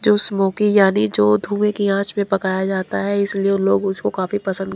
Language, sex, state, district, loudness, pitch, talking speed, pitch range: Hindi, female, Bihar, Katihar, -18 LUFS, 195 Hz, 200 wpm, 190-205 Hz